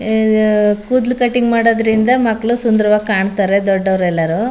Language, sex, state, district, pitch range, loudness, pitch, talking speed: Kannada, female, Karnataka, Mysore, 200-235 Hz, -14 LUFS, 220 Hz, 135 wpm